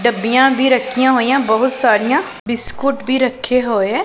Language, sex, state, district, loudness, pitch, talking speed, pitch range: Punjabi, female, Punjab, Pathankot, -15 LUFS, 255 Hz, 165 wpm, 235-265 Hz